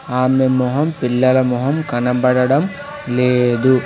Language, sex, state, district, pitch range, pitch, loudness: Telugu, male, Telangana, Hyderabad, 125-140 Hz, 130 Hz, -16 LUFS